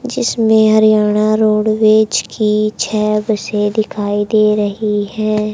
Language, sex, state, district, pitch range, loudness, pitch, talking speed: Hindi, male, Haryana, Charkhi Dadri, 210-215 Hz, -14 LUFS, 215 Hz, 110 wpm